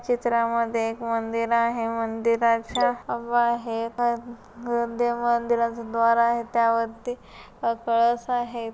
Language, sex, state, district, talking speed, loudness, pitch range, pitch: Marathi, female, Maharashtra, Solapur, 115 wpm, -24 LUFS, 230-240 Hz, 235 Hz